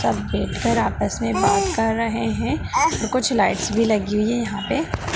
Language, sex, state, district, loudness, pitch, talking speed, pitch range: Hindi, female, Bihar, Jahanabad, -21 LUFS, 225 Hz, 210 wpm, 215-250 Hz